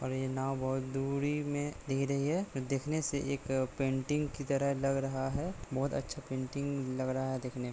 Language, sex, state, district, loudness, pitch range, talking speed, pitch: Hindi, male, Jharkhand, Sahebganj, -35 LUFS, 130-140 Hz, 195 wpm, 135 Hz